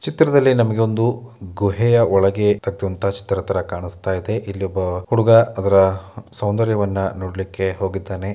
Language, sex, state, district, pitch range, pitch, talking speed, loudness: Kannada, male, Karnataka, Dakshina Kannada, 95-115 Hz, 100 Hz, 115 wpm, -19 LUFS